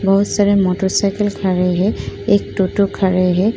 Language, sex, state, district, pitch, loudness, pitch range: Hindi, female, Uttar Pradesh, Muzaffarnagar, 195 Hz, -16 LUFS, 185-205 Hz